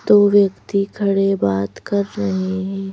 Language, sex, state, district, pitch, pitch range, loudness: Hindi, female, Madhya Pradesh, Bhopal, 195 Hz, 190-200 Hz, -18 LUFS